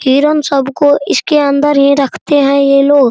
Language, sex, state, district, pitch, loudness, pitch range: Hindi, male, Bihar, Araria, 280 Hz, -10 LUFS, 275-290 Hz